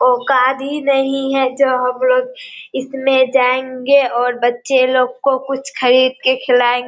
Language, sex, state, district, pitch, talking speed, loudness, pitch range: Hindi, female, Bihar, Kishanganj, 260 Hz, 155 wpm, -15 LUFS, 250-270 Hz